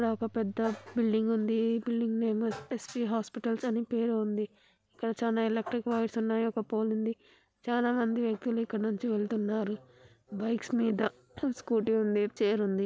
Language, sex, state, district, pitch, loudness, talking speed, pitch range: Telugu, female, Andhra Pradesh, Anantapur, 225 Hz, -31 LUFS, 160 wpm, 215-230 Hz